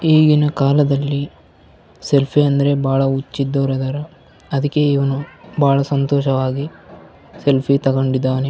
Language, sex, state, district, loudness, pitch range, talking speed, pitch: Kannada, male, Karnataka, Bellary, -17 LUFS, 135-145 Hz, 90 wpm, 140 Hz